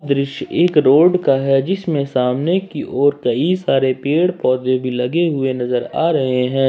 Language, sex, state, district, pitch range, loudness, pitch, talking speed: Hindi, male, Jharkhand, Ranchi, 130-170 Hz, -17 LUFS, 140 Hz, 180 wpm